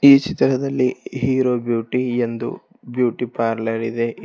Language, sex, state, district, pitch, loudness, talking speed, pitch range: Kannada, male, Karnataka, Bidar, 125 Hz, -20 LUFS, 115 wpm, 115-130 Hz